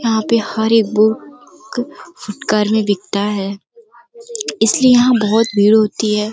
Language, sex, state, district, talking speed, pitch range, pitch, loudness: Hindi, female, Uttar Pradesh, Gorakhpur, 140 wpm, 210-250 Hz, 220 Hz, -15 LUFS